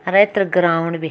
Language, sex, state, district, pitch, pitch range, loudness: Kumaoni, female, Uttarakhand, Tehri Garhwal, 180 Hz, 165-195 Hz, -16 LUFS